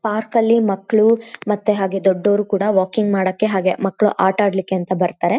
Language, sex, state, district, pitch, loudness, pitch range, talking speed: Kannada, female, Karnataka, Shimoga, 200 Hz, -17 LUFS, 190-215 Hz, 165 wpm